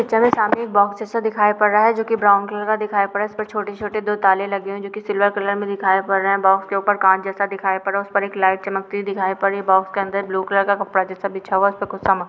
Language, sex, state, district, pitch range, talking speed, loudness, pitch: Hindi, female, Chhattisgarh, Sukma, 195-210 Hz, 340 wpm, -19 LUFS, 200 Hz